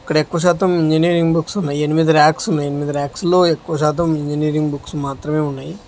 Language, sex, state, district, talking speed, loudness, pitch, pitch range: Telugu, male, Telangana, Hyderabad, 185 wpm, -17 LUFS, 155 Hz, 150-170 Hz